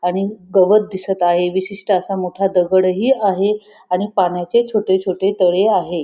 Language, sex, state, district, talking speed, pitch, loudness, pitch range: Marathi, female, Maharashtra, Pune, 150 wpm, 190 Hz, -17 LUFS, 180-205 Hz